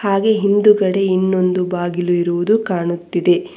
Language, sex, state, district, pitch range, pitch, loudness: Kannada, female, Karnataka, Bangalore, 175-205 Hz, 185 Hz, -16 LUFS